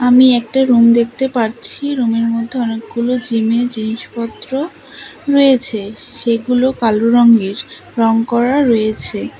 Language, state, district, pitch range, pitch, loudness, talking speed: Bengali, West Bengal, Alipurduar, 225-250 Hz, 235 Hz, -14 LUFS, 110 wpm